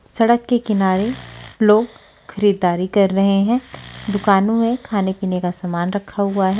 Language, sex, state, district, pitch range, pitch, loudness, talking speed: Hindi, female, Delhi, New Delhi, 190-220 Hz, 200 Hz, -18 LUFS, 155 wpm